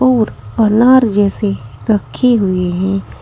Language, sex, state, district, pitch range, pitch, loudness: Hindi, female, Uttar Pradesh, Saharanpur, 195-235 Hz, 215 Hz, -13 LUFS